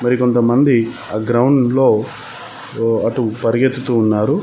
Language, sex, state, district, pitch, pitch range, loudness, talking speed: Telugu, male, Telangana, Mahabubabad, 120 Hz, 115-125 Hz, -15 LUFS, 110 wpm